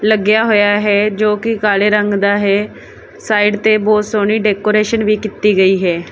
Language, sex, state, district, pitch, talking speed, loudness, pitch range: Punjabi, female, Punjab, Kapurthala, 210 Hz, 175 wpm, -13 LUFS, 205-215 Hz